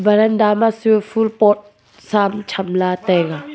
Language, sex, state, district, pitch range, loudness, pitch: Wancho, female, Arunachal Pradesh, Longding, 185-215 Hz, -16 LUFS, 205 Hz